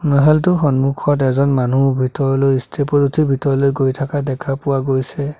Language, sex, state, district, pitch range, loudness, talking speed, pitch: Assamese, male, Assam, Sonitpur, 135-145 Hz, -16 LUFS, 155 wpm, 135 Hz